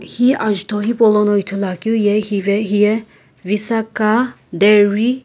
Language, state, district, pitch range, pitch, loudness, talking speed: Sumi, Nagaland, Kohima, 205-225 Hz, 210 Hz, -16 LUFS, 105 wpm